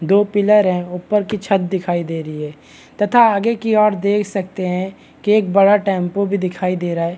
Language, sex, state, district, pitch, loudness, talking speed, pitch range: Hindi, male, Bihar, Madhepura, 195 Hz, -17 LUFS, 215 wpm, 180-205 Hz